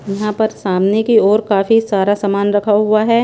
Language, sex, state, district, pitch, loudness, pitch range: Hindi, female, Punjab, Pathankot, 210 Hz, -14 LUFS, 200-220 Hz